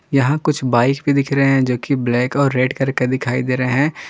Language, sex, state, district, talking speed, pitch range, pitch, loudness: Hindi, male, Jharkhand, Garhwa, 235 wpm, 125-140 Hz, 135 Hz, -17 LUFS